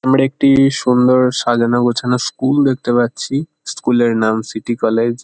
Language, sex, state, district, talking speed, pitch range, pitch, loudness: Bengali, male, West Bengal, Kolkata, 160 wpm, 120-135 Hz, 125 Hz, -15 LUFS